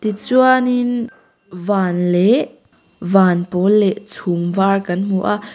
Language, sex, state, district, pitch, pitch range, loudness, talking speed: Mizo, female, Mizoram, Aizawl, 195 Hz, 180-225 Hz, -16 LUFS, 120 wpm